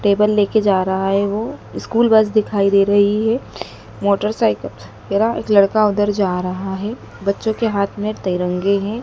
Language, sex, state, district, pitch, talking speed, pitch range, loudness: Hindi, female, Madhya Pradesh, Dhar, 205 Hz, 175 wpm, 200-215 Hz, -17 LUFS